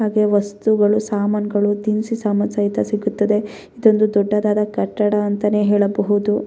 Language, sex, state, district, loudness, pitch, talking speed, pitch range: Kannada, female, Karnataka, Bellary, -18 LUFS, 210 Hz, 120 wpm, 205-215 Hz